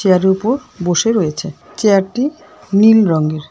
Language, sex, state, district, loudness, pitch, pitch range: Bengali, female, West Bengal, Alipurduar, -14 LUFS, 200 Hz, 180-230 Hz